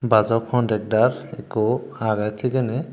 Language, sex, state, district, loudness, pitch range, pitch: Chakma, male, Tripura, Dhalai, -22 LUFS, 110-125 Hz, 115 Hz